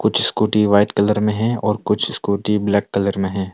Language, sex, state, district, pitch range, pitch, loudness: Hindi, male, Arunachal Pradesh, Longding, 100-105 Hz, 105 Hz, -18 LUFS